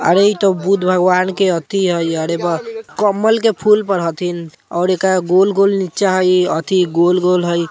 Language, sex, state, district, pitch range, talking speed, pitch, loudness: Bajjika, male, Bihar, Vaishali, 175-195 Hz, 170 wpm, 185 Hz, -15 LUFS